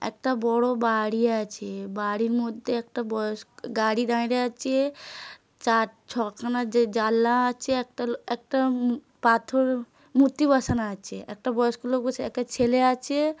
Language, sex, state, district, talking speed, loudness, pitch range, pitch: Bengali, female, West Bengal, Paschim Medinipur, 150 wpm, -25 LUFS, 225-255 Hz, 240 Hz